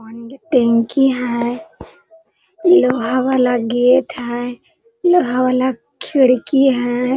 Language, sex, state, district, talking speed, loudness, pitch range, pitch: Hindi, female, Jharkhand, Sahebganj, 100 wpm, -16 LUFS, 245-280 Hz, 255 Hz